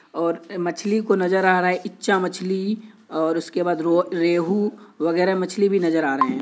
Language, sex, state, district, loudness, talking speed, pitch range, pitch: Hindi, male, Bihar, Kishanganj, -22 LUFS, 205 wpm, 170-205 Hz, 185 Hz